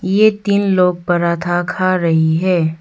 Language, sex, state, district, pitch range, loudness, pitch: Hindi, female, Arunachal Pradesh, Longding, 170-185 Hz, -15 LUFS, 180 Hz